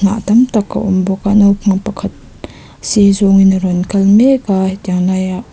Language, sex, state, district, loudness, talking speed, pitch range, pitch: Mizo, female, Mizoram, Aizawl, -12 LUFS, 195 wpm, 190-205 Hz, 195 Hz